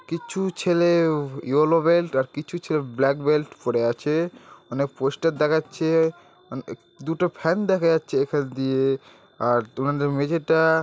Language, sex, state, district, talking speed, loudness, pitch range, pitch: Bengali, male, West Bengal, Dakshin Dinajpur, 145 wpm, -23 LUFS, 135-165 Hz, 150 Hz